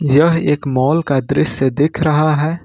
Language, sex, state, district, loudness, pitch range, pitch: Hindi, male, Jharkhand, Ranchi, -15 LUFS, 135-155 Hz, 150 Hz